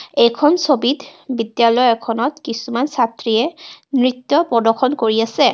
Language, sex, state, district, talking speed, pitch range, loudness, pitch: Assamese, female, Assam, Kamrup Metropolitan, 110 wpm, 230-280 Hz, -17 LUFS, 245 Hz